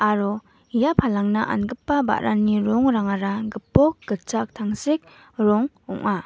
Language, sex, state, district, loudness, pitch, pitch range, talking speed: Garo, female, Meghalaya, West Garo Hills, -22 LUFS, 215 Hz, 210-250 Hz, 105 wpm